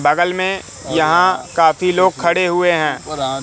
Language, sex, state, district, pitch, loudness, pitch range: Hindi, male, Madhya Pradesh, Katni, 170 Hz, -16 LUFS, 150-180 Hz